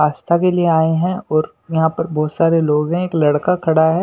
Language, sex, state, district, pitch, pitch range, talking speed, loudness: Hindi, male, Delhi, New Delhi, 160 Hz, 155-170 Hz, 240 wpm, -16 LUFS